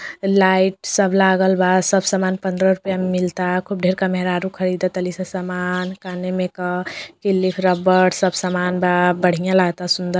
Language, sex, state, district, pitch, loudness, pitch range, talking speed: Bhojpuri, female, Uttar Pradesh, Deoria, 185 Hz, -18 LUFS, 180-190 Hz, 155 wpm